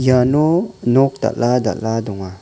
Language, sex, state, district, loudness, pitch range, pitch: Garo, male, Meghalaya, West Garo Hills, -17 LUFS, 110-135 Hz, 125 Hz